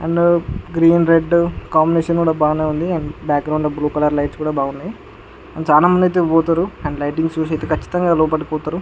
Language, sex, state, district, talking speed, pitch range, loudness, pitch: Telugu, male, Andhra Pradesh, Guntur, 175 wpm, 150-170 Hz, -17 LUFS, 160 Hz